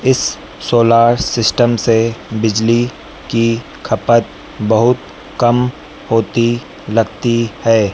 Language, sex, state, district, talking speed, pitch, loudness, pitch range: Hindi, male, Madhya Pradesh, Dhar, 90 wpm, 115 Hz, -14 LUFS, 115-120 Hz